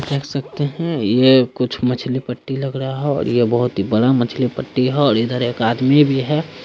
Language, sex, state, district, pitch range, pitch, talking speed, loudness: Hindi, male, Bihar, Saharsa, 120-140 Hz, 130 Hz, 210 wpm, -18 LUFS